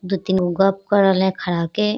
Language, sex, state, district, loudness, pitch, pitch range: Hindi, female, Bihar, Kishanganj, -18 LUFS, 190 Hz, 185-195 Hz